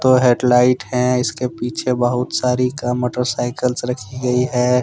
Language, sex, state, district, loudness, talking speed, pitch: Hindi, male, Jharkhand, Deoghar, -18 LUFS, 150 wpm, 125 Hz